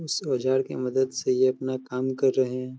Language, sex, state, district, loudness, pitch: Hindi, male, Uttar Pradesh, Hamirpur, -26 LUFS, 130 Hz